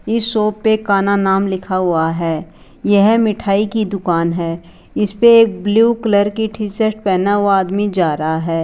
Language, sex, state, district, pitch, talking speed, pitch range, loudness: Hindi, female, Rajasthan, Jaipur, 200 Hz, 185 wpm, 180-215 Hz, -15 LUFS